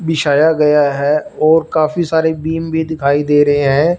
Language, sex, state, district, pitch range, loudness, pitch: Hindi, male, Punjab, Fazilka, 145-160 Hz, -14 LUFS, 155 Hz